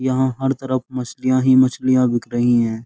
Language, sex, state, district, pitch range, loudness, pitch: Hindi, male, Uttar Pradesh, Jyotiba Phule Nagar, 120-130 Hz, -18 LUFS, 130 Hz